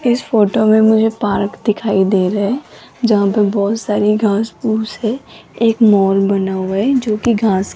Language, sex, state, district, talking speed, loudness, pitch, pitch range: Hindi, female, Rajasthan, Jaipur, 195 wpm, -15 LUFS, 215 Hz, 200-225 Hz